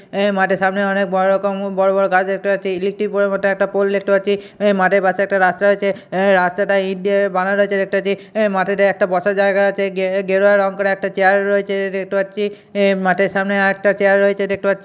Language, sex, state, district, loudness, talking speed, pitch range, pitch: Bengali, male, West Bengal, Purulia, -16 LUFS, 210 wpm, 195-200 Hz, 195 Hz